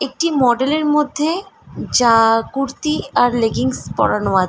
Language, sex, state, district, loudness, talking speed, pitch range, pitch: Bengali, female, West Bengal, Malda, -17 LUFS, 135 wpm, 225-300 Hz, 265 Hz